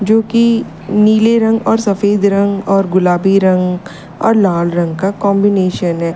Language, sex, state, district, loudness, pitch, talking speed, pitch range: Hindi, female, Uttar Pradesh, Lalitpur, -13 LUFS, 195 Hz, 145 wpm, 180-215 Hz